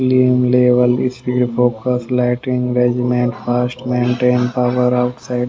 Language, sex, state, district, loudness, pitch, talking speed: Hindi, male, Haryana, Rohtak, -16 LUFS, 125 Hz, 110 wpm